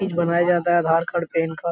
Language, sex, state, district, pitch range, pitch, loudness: Hindi, male, Bihar, Jahanabad, 165-175 Hz, 170 Hz, -20 LUFS